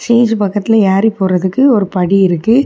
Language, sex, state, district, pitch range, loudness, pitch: Tamil, female, Tamil Nadu, Kanyakumari, 190-230 Hz, -12 LUFS, 205 Hz